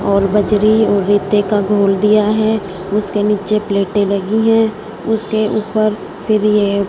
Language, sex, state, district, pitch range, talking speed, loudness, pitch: Hindi, female, Punjab, Fazilka, 200-215 Hz, 150 wpm, -15 LUFS, 210 Hz